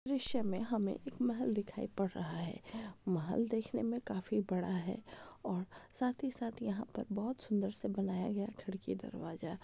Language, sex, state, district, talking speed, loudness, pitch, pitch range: Hindi, female, Rajasthan, Nagaur, 180 wpm, -39 LUFS, 215 Hz, 195-235 Hz